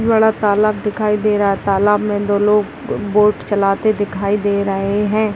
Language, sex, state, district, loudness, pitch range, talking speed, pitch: Hindi, female, Bihar, Muzaffarpur, -16 LUFS, 200-210 Hz, 170 wpm, 205 Hz